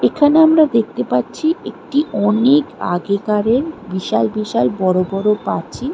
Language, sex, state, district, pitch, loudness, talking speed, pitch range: Bengali, female, West Bengal, Malda, 210 Hz, -16 LUFS, 120 wpm, 190-290 Hz